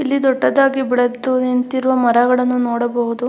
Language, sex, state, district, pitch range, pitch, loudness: Kannada, female, Karnataka, Belgaum, 245-260 Hz, 250 Hz, -16 LUFS